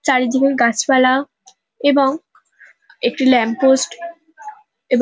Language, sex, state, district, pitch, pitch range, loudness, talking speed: Bengali, female, West Bengal, North 24 Parganas, 270 Hz, 255-325 Hz, -16 LUFS, 95 wpm